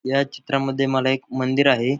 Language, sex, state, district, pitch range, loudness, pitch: Marathi, male, Maharashtra, Pune, 130-135 Hz, -21 LUFS, 135 Hz